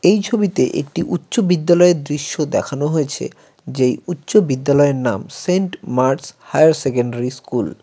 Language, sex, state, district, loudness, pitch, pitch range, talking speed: Bengali, male, West Bengal, Cooch Behar, -17 LUFS, 150 Hz, 135-180 Hz, 140 wpm